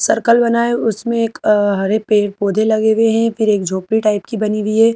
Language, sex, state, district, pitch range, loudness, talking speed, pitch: Hindi, female, Madhya Pradesh, Bhopal, 210-225 Hz, -15 LUFS, 230 wpm, 220 Hz